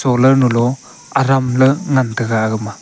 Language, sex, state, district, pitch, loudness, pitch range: Wancho, male, Arunachal Pradesh, Longding, 125 Hz, -15 LUFS, 115-135 Hz